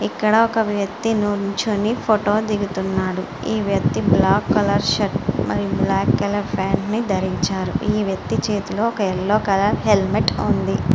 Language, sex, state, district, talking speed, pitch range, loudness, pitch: Telugu, female, Andhra Pradesh, Srikakulam, 125 wpm, 190-215 Hz, -20 LUFS, 205 Hz